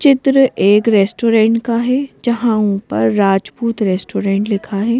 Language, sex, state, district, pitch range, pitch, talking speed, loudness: Hindi, female, Madhya Pradesh, Bhopal, 200-240 Hz, 220 Hz, 130 wpm, -15 LUFS